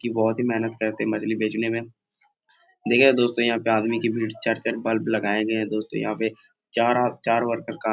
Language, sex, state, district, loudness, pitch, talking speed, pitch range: Hindi, male, Bihar, Jahanabad, -23 LUFS, 115 Hz, 225 wpm, 110-120 Hz